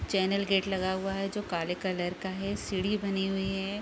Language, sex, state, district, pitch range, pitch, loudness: Hindi, female, Bihar, East Champaran, 190-195 Hz, 195 Hz, -31 LUFS